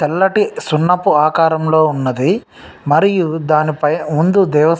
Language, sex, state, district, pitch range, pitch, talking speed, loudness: Telugu, male, Telangana, Nalgonda, 155-180 Hz, 160 Hz, 125 wpm, -14 LUFS